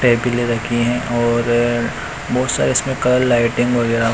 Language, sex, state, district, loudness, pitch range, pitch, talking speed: Hindi, male, Chandigarh, Chandigarh, -17 LUFS, 120-125 Hz, 120 Hz, 145 wpm